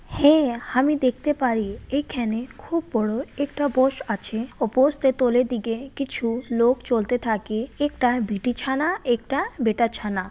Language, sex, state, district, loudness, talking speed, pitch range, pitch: Bengali, female, West Bengal, Purulia, -23 LUFS, 105 wpm, 230-275 Hz, 250 Hz